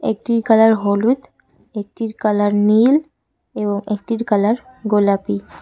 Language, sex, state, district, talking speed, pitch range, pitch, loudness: Bengali, female, West Bengal, Cooch Behar, 105 wpm, 205-230 Hz, 215 Hz, -17 LUFS